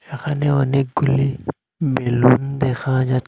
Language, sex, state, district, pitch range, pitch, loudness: Bengali, male, Assam, Hailakandi, 130-145 Hz, 135 Hz, -19 LUFS